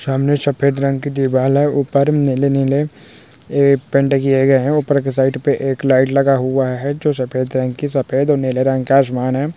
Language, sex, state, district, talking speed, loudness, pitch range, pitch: Hindi, male, West Bengal, Dakshin Dinajpur, 190 wpm, -16 LUFS, 130-140 Hz, 135 Hz